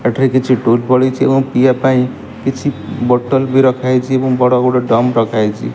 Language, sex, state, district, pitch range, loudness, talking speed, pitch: Odia, male, Odisha, Malkangiri, 120-130 Hz, -13 LUFS, 200 wpm, 130 Hz